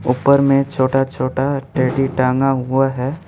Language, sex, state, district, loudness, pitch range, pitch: Hindi, male, West Bengal, Alipurduar, -17 LUFS, 130-135 Hz, 135 Hz